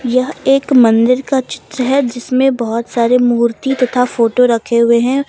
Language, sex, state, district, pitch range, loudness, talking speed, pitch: Hindi, female, Jharkhand, Deoghar, 235-265 Hz, -13 LUFS, 170 wpm, 250 Hz